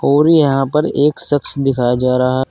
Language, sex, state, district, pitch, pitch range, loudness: Hindi, male, Uttar Pradesh, Saharanpur, 140 Hz, 130-150 Hz, -14 LUFS